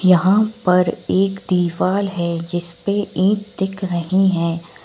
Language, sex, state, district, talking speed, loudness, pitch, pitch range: Hindi, female, Uttar Pradesh, Etah, 125 wpm, -19 LUFS, 185 Hz, 175-195 Hz